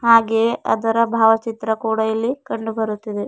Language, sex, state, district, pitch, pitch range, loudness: Kannada, female, Karnataka, Bidar, 225 Hz, 220-230 Hz, -19 LUFS